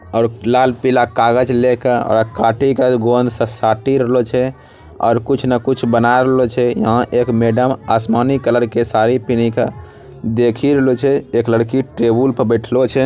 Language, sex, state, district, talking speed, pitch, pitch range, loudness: Angika, male, Bihar, Bhagalpur, 200 wpm, 120 Hz, 115-130 Hz, -15 LUFS